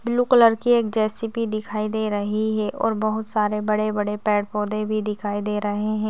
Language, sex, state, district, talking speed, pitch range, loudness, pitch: Hindi, female, Chhattisgarh, Raigarh, 185 wpm, 210-220 Hz, -22 LUFS, 215 Hz